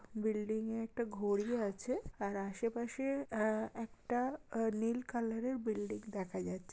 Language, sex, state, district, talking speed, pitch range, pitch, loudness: Bengali, female, West Bengal, Kolkata, 160 wpm, 210-235 Hz, 225 Hz, -39 LUFS